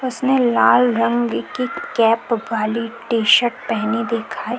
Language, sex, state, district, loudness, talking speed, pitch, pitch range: Hindi, female, Chhattisgarh, Korba, -18 LUFS, 115 wpm, 230 Hz, 215-240 Hz